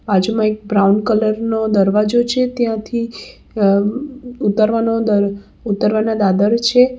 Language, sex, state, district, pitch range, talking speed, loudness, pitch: Gujarati, female, Gujarat, Valsad, 205-235 Hz, 110 wpm, -16 LUFS, 220 Hz